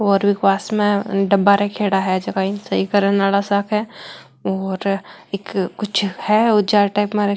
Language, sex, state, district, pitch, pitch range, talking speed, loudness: Marwari, female, Rajasthan, Nagaur, 200 Hz, 195-205 Hz, 145 wpm, -18 LUFS